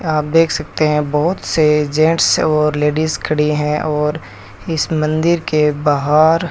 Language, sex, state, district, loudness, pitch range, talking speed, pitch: Hindi, male, Rajasthan, Bikaner, -15 LUFS, 150-160 Hz, 155 wpm, 155 Hz